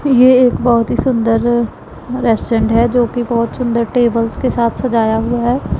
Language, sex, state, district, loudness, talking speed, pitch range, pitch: Hindi, female, Punjab, Pathankot, -14 LUFS, 175 wpm, 230-250 Hz, 240 Hz